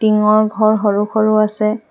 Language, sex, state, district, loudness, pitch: Assamese, female, Assam, Hailakandi, -14 LUFS, 215 Hz